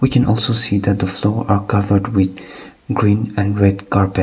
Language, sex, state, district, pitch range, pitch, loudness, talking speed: English, male, Nagaland, Kohima, 100-110 Hz, 100 Hz, -16 LUFS, 200 wpm